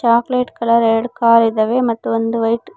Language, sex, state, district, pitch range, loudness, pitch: Kannada, female, Karnataka, Koppal, 225-235 Hz, -15 LUFS, 230 Hz